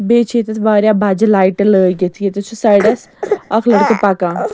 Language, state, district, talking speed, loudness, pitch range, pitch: Kashmiri, Punjab, Kapurthala, 170 wpm, -13 LUFS, 200-225 Hz, 210 Hz